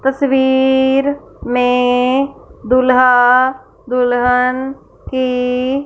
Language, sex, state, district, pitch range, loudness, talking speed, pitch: Hindi, female, Punjab, Fazilka, 250-265 Hz, -14 LUFS, 50 wpm, 255 Hz